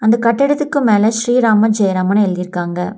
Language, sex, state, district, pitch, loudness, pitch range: Tamil, female, Tamil Nadu, Nilgiris, 215 Hz, -14 LUFS, 190-235 Hz